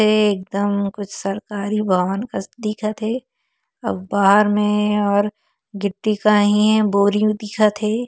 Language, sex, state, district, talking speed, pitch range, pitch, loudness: Chhattisgarhi, female, Chhattisgarh, Korba, 135 wpm, 200-215 Hz, 210 Hz, -19 LUFS